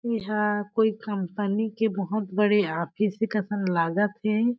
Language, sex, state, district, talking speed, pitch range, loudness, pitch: Chhattisgarhi, female, Chhattisgarh, Jashpur, 145 wpm, 200-220 Hz, -26 LUFS, 210 Hz